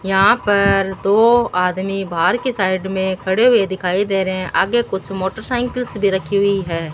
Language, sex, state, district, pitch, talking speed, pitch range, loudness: Hindi, female, Rajasthan, Bikaner, 195 Hz, 190 wpm, 190-220 Hz, -17 LUFS